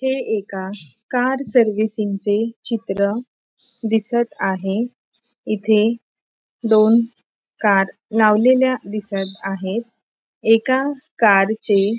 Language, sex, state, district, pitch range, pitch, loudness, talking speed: Marathi, female, Maharashtra, Pune, 200-235 Hz, 220 Hz, -19 LUFS, 80 wpm